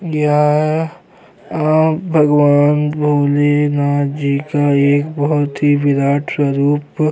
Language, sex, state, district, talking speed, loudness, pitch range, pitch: Hindi, male, Chhattisgarh, Kabirdham, 95 wpm, -14 LUFS, 145-150 Hz, 145 Hz